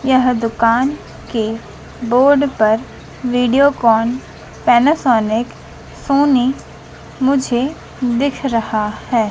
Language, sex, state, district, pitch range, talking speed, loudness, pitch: Hindi, female, Madhya Pradesh, Dhar, 230-270 Hz, 75 wpm, -16 LUFS, 245 Hz